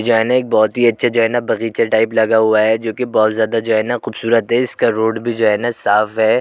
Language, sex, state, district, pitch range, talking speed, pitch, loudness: Hindi, male, Uttar Pradesh, Jyotiba Phule Nagar, 110-120 Hz, 300 wpm, 115 Hz, -15 LUFS